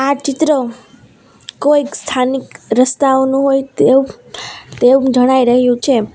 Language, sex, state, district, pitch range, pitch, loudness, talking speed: Gujarati, female, Gujarat, Valsad, 250-275 Hz, 265 Hz, -13 LUFS, 105 wpm